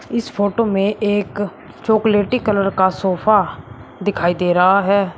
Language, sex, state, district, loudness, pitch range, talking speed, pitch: Hindi, male, Uttar Pradesh, Shamli, -17 LUFS, 190-215 Hz, 140 wpm, 205 Hz